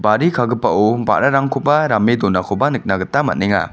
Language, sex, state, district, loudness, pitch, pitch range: Garo, male, Meghalaya, West Garo Hills, -16 LUFS, 120 Hz, 110-140 Hz